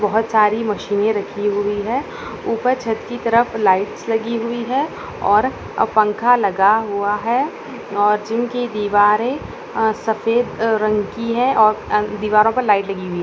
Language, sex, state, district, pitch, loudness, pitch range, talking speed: Hindi, female, Uttar Pradesh, Gorakhpur, 215 Hz, -18 LUFS, 205-230 Hz, 160 wpm